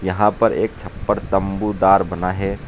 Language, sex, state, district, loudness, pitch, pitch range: Hindi, male, Uttar Pradesh, Saharanpur, -19 LUFS, 100 Hz, 95-105 Hz